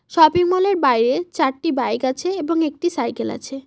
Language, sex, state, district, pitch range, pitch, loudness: Bengali, female, West Bengal, Cooch Behar, 265-350 Hz, 315 Hz, -19 LUFS